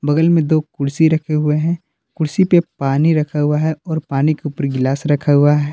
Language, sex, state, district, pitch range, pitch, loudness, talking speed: Hindi, male, Jharkhand, Palamu, 145-160 Hz, 150 Hz, -16 LUFS, 220 wpm